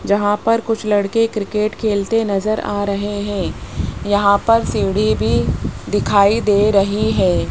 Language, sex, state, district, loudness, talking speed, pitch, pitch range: Hindi, female, Rajasthan, Jaipur, -17 LUFS, 145 wpm, 205 Hz, 200-215 Hz